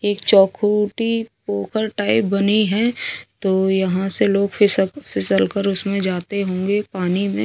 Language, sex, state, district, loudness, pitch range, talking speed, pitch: Hindi, female, Delhi, New Delhi, -18 LUFS, 190-210 Hz, 145 wpm, 200 Hz